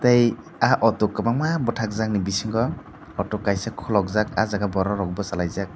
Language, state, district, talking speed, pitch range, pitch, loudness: Kokborok, Tripura, Dhalai, 145 wpm, 100-120 Hz, 105 Hz, -23 LUFS